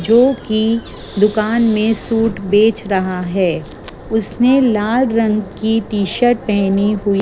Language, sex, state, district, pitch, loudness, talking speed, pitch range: Hindi, female, Gujarat, Gandhinagar, 215 Hz, -15 LUFS, 125 wpm, 200-225 Hz